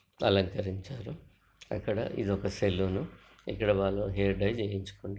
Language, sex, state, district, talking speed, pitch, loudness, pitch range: Telugu, male, Telangana, Nalgonda, 105 wpm, 100 Hz, -32 LUFS, 95-105 Hz